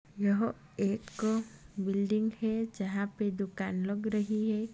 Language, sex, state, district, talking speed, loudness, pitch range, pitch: Kumaoni, female, Uttarakhand, Tehri Garhwal, 125 wpm, -33 LUFS, 200-220 Hz, 210 Hz